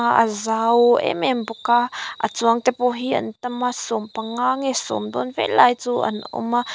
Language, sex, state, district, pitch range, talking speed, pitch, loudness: Mizo, female, Mizoram, Aizawl, 225-245 Hz, 195 wpm, 235 Hz, -20 LUFS